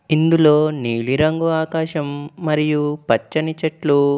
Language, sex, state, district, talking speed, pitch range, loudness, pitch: Telugu, male, Telangana, Komaram Bheem, 100 wpm, 145-160 Hz, -18 LUFS, 150 Hz